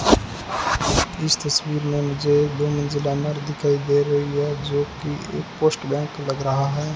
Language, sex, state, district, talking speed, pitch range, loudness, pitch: Hindi, male, Rajasthan, Bikaner, 140 wpm, 145-150 Hz, -22 LUFS, 145 Hz